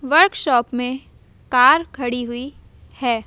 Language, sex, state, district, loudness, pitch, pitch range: Hindi, female, Madhya Pradesh, Umaria, -18 LUFS, 250 Hz, 245-275 Hz